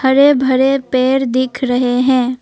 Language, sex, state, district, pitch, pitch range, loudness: Hindi, female, Assam, Kamrup Metropolitan, 260 Hz, 250-265 Hz, -13 LUFS